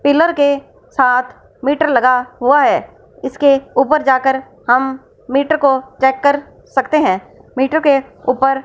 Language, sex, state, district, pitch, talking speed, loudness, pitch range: Hindi, female, Punjab, Fazilka, 270 Hz, 145 wpm, -15 LUFS, 265-285 Hz